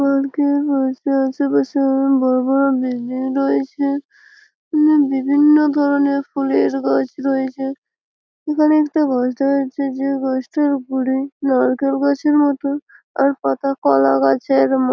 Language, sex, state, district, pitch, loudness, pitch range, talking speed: Bengali, female, West Bengal, Malda, 275 Hz, -17 LUFS, 260-285 Hz, 115 wpm